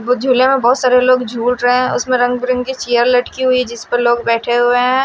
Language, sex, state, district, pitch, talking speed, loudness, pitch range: Hindi, female, Odisha, Malkangiri, 250 Hz, 260 wpm, -14 LUFS, 240-255 Hz